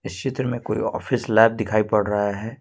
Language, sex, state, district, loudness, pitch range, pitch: Hindi, male, Jharkhand, Ranchi, -22 LUFS, 105-125 Hz, 110 Hz